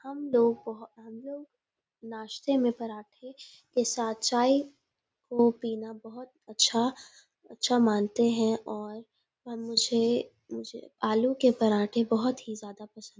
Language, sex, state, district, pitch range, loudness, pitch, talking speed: Hindi, female, Uttarakhand, Uttarkashi, 220-245 Hz, -28 LUFS, 230 Hz, 130 wpm